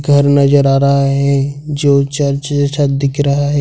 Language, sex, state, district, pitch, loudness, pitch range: Hindi, male, Jharkhand, Ranchi, 140 Hz, -13 LUFS, 140-145 Hz